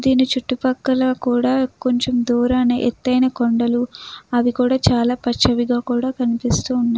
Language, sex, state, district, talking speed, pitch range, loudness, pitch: Telugu, female, Andhra Pradesh, Krishna, 95 wpm, 240-255 Hz, -18 LUFS, 245 Hz